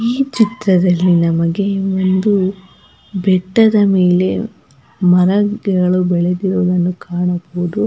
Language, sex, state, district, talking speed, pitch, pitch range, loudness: Kannada, female, Karnataka, Belgaum, 70 wpm, 185 Hz, 180-200 Hz, -15 LUFS